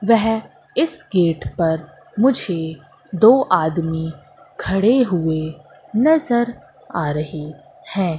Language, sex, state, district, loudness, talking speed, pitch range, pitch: Hindi, female, Madhya Pradesh, Katni, -18 LUFS, 95 wpm, 160-230 Hz, 175 Hz